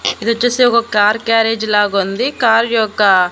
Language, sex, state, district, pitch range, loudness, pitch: Telugu, female, Andhra Pradesh, Annamaya, 205-235 Hz, -14 LUFS, 225 Hz